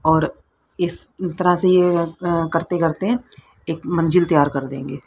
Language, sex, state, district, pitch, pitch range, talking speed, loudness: Hindi, female, Haryana, Rohtak, 170 Hz, 160-180 Hz, 130 wpm, -19 LUFS